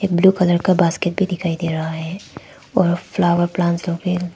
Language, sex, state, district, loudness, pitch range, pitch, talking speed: Hindi, female, Arunachal Pradesh, Papum Pare, -19 LUFS, 170-180 Hz, 175 Hz, 195 wpm